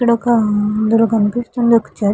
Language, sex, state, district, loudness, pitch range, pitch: Telugu, female, Andhra Pradesh, Visakhapatnam, -15 LUFS, 210-235 Hz, 225 Hz